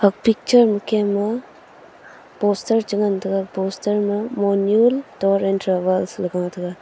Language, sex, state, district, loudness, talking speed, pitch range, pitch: Wancho, female, Arunachal Pradesh, Longding, -20 LUFS, 150 wpm, 195-215 Hz, 200 Hz